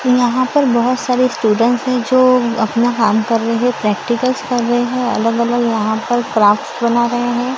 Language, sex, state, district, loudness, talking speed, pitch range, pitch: Hindi, female, Maharashtra, Gondia, -15 LUFS, 180 wpm, 230-250 Hz, 240 Hz